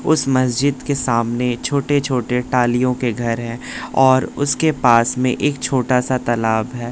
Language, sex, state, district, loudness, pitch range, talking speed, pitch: Hindi, male, Bihar, West Champaran, -18 LUFS, 120-135 Hz, 165 wpm, 125 Hz